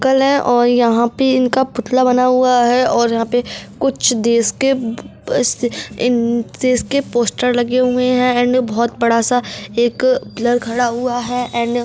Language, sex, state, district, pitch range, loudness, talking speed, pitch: Hindi, female, Bihar, Jamui, 235-255 Hz, -15 LUFS, 180 wpm, 245 Hz